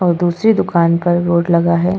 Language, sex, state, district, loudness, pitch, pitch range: Hindi, female, Goa, North and South Goa, -14 LUFS, 175 Hz, 170-175 Hz